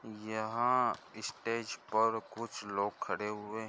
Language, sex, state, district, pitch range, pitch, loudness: Hindi, male, Andhra Pradesh, Chittoor, 105-115 Hz, 110 Hz, -35 LUFS